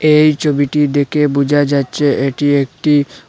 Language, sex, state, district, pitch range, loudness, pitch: Bengali, male, Assam, Hailakandi, 140-150 Hz, -14 LUFS, 145 Hz